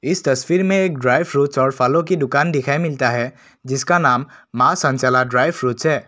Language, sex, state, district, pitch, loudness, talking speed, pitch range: Hindi, male, Assam, Kamrup Metropolitan, 140 Hz, -17 LUFS, 195 wpm, 125-170 Hz